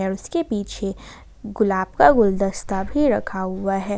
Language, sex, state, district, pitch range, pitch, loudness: Hindi, female, Jharkhand, Ranchi, 190-215 Hz, 195 Hz, -21 LUFS